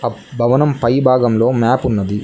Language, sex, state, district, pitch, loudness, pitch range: Telugu, male, Telangana, Mahabubabad, 120 Hz, -15 LUFS, 115-130 Hz